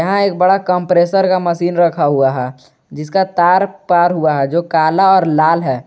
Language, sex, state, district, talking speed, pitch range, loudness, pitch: Hindi, male, Jharkhand, Garhwa, 185 wpm, 155-185 Hz, -13 LUFS, 175 Hz